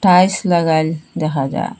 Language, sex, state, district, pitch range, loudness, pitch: Bengali, female, Assam, Hailakandi, 155-180 Hz, -16 LUFS, 160 Hz